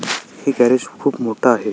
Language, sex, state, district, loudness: Marathi, male, Maharashtra, Sindhudurg, -18 LUFS